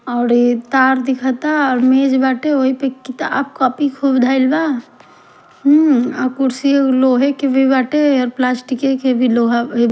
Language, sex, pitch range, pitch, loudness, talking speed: Bhojpuri, female, 255-275 Hz, 265 Hz, -15 LUFS, 165 wpm